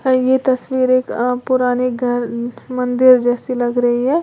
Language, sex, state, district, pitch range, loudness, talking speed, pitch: Hindi, female, Uttar Pradesh, Lalitpur, 245-255 Hz, -16 LUFS, 155 wpm, 250 Hz